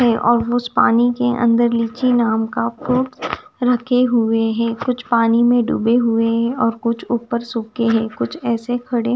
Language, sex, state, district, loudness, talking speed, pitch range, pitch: Hindi, female, Punjab, Kapurthala, -18 LUFS, 175 wpm, 230-245 Hz, 235 Hz